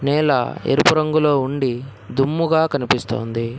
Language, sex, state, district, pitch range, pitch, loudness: Telugu, male, Telangana, Hyderabad, 120-150 Hz, 135 Hz, -19 LUFS